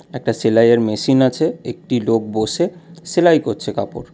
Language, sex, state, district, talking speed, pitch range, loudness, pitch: Bengali, male, West Bengal, Alipurduar, 145 wpm, 115-170 Hz, -17 LUFS, 130 Hz